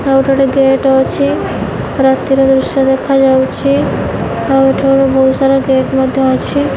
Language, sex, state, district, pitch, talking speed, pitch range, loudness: Odia, female, Odisha, Nuapada, 270 Hz, 140 wpm, 265-270 Hz, -11 LUFS